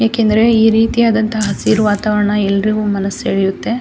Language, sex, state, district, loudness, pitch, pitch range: Kannada, female, Karnataka, Dakshina Kannada, -14 LUFS, 215 Hz, 205-225 Hz